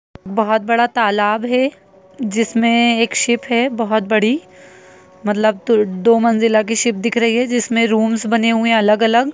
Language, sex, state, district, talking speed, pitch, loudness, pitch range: Hindi, female, Bihar, Saran, 160 wpm, 230 Hz, -16 LUFS, 220-235 Hz